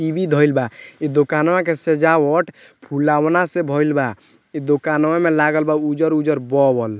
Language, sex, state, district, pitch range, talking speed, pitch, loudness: Bhojpuri, male, Bihar, Muzaffarpur, 145-160 Hz, 165 wpm, 150 Hz, -17 LUFS